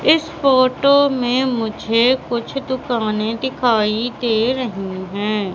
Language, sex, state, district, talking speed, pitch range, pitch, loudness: Hindi, female, Madhya Pradesh, Katni, 110 wpm, 220-260 Hz, 240 Hz, -18 LUFS